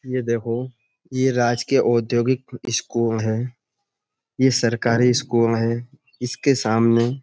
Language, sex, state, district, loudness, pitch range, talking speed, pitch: Hindi, male, Uttar Pradesh, Budaun, -21 LUFS, 115-130 Hz, 115 wpm, 120 Hz